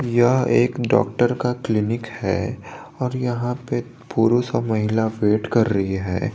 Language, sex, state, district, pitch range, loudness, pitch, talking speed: Hindi, male, Jharkhand, Garhwa, 105-125 Hz, -21 LUFS, 115 Hz, 140 wpm